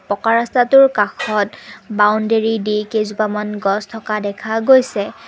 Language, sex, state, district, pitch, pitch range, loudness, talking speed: Assamese, female, Assam, Kamrup Metropolitan, 215 Hz, 210-225 Hz, -16 LUFS, 115 wpm